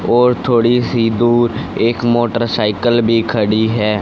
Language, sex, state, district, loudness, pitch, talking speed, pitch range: Hindi, male, Haryana, Rohtak, -14 LUFS, 115 Hz, 135 wpm, 110-120 Hz